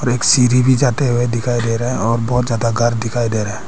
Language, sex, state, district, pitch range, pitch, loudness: Hindi, male, Arunachal Pradesh, Papum Pare, 115-125 Hz, 120 Hz, -16 LUFS